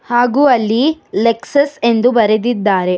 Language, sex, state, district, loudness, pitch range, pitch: Kannada, female, Karnataka, Bangalore, -13 LUFS, 220-265 Hz, 240 Hz